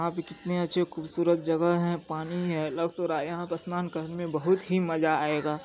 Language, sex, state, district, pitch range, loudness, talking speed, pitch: Maithili, male, Bihar, Supaul, 160-175 Hz, -29 LUFS, 235 wpm, 170 Hz